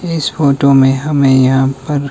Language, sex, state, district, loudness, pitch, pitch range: Hindi, male, Himachal Pradesh, Shimla, -12 LUFS, 140 Hz, 135-145 Hz